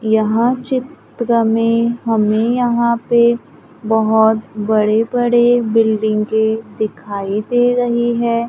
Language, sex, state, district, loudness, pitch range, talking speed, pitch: Hindi, female, Maharashtra, Gondia, -15 LUFS, 220-240 Hz, 105 wpm, 230 Hz